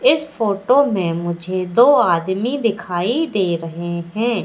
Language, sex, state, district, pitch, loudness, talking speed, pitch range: Hindi, female, Madhya Pradesh, Katni, 195 Hz, -18 LUFS, 135 wpm, 175-235 Hz